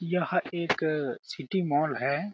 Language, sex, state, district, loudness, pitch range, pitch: Hindi, male, Chhattisgarh, Balrampur, -29 LUFS, 150-180 Hz, 170 Hz